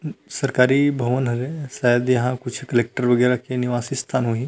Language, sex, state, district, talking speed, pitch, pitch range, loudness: Chhattisgarhi, male, Chhattisgarh, Rajnandgaon, 145 wpm, 125 Hz, 125-135 Hz, -21 LUFS